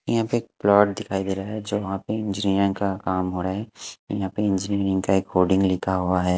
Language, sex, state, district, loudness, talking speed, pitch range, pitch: Hindi, male, Haryana, Charkhi Dadri, -23 LUFS, 245 wpm, 95-105 Hz, 95 Hz